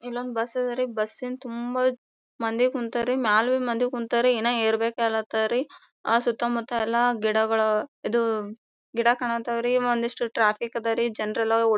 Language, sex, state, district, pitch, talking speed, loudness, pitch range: Kannada, female, Karnataka, Gulbarga, 235 Hz, 135 wpm, -25 LUFS, 225-245 Hz